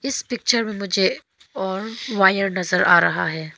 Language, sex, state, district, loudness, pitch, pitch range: Hindi, female, Arunachal Pradesh, Longding, -20 LUFS, 195 Hz, 190-225 Hz